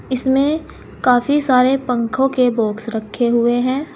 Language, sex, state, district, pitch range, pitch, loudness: Hindi, female, Uttar Pradesh, Saharanpur, 235-270 Hz, 250 Hz, -17 LUFS